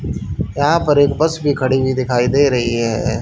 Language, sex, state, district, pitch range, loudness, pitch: Hindi, male, Haryana, Charkhi Dadri, 120-145 Hz, -16 LUFS, 130 Hz